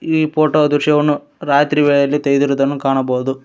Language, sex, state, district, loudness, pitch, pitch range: Kannada, male, Karnataka, Koppal, -15 LUFS, 145 Hz, 140-150 Hz